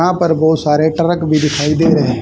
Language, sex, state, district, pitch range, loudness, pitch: Hindi, female, Haryana, Charkhi Dadri, 150-165 Hz, -13 LUFS, 155 Hz